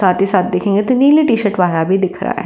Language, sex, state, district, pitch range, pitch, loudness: Hindi, female, Uttar Pradesh, Varanasi, 185-230 Hz, 195 Hz, -14 LUFS